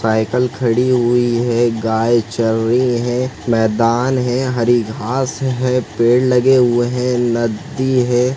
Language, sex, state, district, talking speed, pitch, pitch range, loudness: Hindi, male, Chhattisgarh, Sarguja, 135 wpm, 120 Hz, 115-125 Hz, -16 LUFS